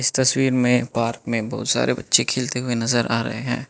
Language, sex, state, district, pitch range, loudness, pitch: Hindi, male, Manipur, Imphal West, 115-125 Hz, -21 LUFS, 125 Hz